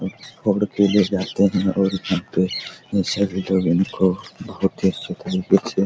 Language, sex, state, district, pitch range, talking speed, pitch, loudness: Hindi, male, Bihar, Araria, 95-100 Hz, 115 wpm, 95 Hz, -21 LUFS